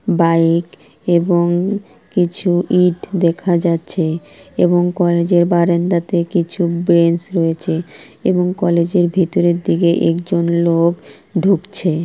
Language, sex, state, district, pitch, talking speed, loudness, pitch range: Bengali, female, West Bengal, Purulia, 175 Hz, 105 wpm, -16 LUFS, 170-180 Hz